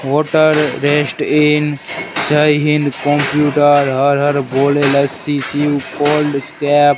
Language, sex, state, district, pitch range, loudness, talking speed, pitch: Hindi, male, Gujarat, Gandhinagar, 140-150 Hz, -14 LUFS, 120 wpm, 145 Hz